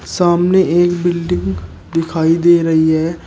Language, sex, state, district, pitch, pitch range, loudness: Hindi, male, Uttar Pradesh, Shamli, 165 Hz, 160-175 Hz, -14 LUFS